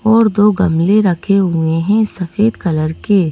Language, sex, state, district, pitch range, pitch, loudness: Hindi, female, Madhya Pradesh, Bhopal, 170-210 Hz, 195 Hz, -14 LUFS